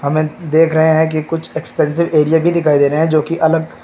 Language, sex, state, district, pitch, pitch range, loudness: Hindi, male, Uttar Pradesh, Lucknow, 160 Hz, 155-160 Hz, -14 LUFS